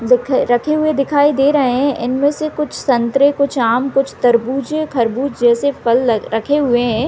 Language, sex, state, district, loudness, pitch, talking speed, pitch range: Hindi, female, Chhattisgarh, Raigarh, -15 LUFS, 270 Hz, 185 wpm, 240-285 Hz